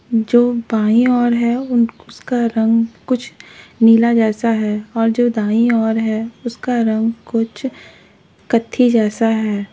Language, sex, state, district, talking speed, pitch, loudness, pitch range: Hindi, female, Uttar Pradesh, Lalitpur, 135 wpm, 230 Hz, -16 LUFS, 225-240 Hz